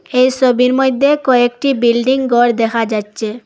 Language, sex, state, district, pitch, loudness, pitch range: Bengali, female, Assam, Hailakandi, 245 Hz, -13 LUFS, 230-260 Hz